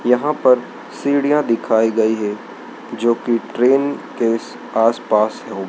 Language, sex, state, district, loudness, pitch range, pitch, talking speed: Hindi, male, Madhya Pradesh, Dhar, -17 LUFS, 110-130 Hz, 115 Hz, 135 wpm